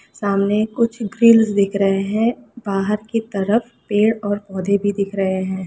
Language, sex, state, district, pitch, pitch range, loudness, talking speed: Hindi, female, Bihar, Sitamarhi, 205 Hz, 195-225 Hz, -18 LUFS, 170 wpm